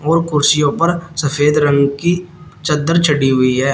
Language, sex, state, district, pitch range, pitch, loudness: Hindi, male, Uttar Pradesh, Shamli, 140-165 Hz, 150 Hz, -14 LUFS